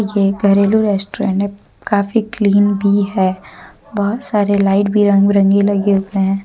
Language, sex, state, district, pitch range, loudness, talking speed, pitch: Hindi, female, Jharkhand, Deoghar, 195-205 Hz, -15 LUFS, 160 wpm, 200 Hz